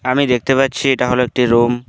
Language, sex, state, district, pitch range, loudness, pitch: Bengali, male, West Bengal, Alipurduar, 125-135 Hz, -15 LUFS, 125 Hz